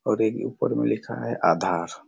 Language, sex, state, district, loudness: Hindi, male, Chhattisgarh, Raigarh, -25 LUFS